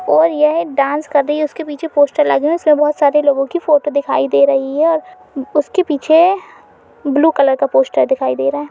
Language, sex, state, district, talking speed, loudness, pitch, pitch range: Hindi, female, Uttar Pradesh, Budaun, 235 wpm, -14 LUFS, 295 Hz, 275-320 Hz